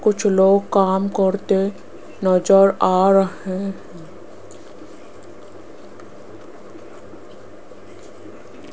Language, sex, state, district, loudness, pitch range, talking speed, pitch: Hindi, female, Rajasthan, Jaipur, -17 LUFS, 190-195 Hz, 55 wpm, 195 Hz